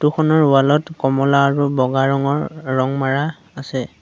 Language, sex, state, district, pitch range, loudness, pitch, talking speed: Assamese, male, Assam, Sonitpur, 135-150 Hz, -17 LUFS, 140 Hz, 165 wpm